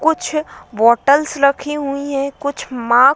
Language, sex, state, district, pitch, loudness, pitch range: Hindi, female, Uttar Pradesh, Budaun, 280 Hz, -16 LUFS, 265-295 Hz